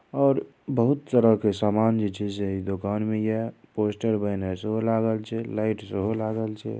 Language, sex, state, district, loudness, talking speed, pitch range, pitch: Maithili, male, Bihar, Darbhanga, -26 LUFS, 175 wpm, 105-115 Hz, 110 Hz